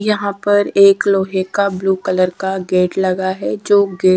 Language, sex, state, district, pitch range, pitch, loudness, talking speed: Hindi, female, Haryana, Rohtak, 185-200 Hz, 190 Hz, -15 LUFS, 200 wpm